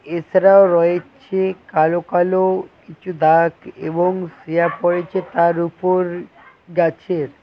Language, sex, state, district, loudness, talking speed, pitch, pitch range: Bengali, male, West Bengal, Cooch Behar, -17 LUFS, 95 wpm, 175 Hz, 170-185 Hz